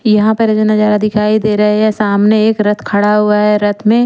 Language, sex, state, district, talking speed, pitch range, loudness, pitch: Hindi, female, Chandigarh, Chandigarh, 250 wpm, 210-215 Hz, -11 LUFS, 210 Hz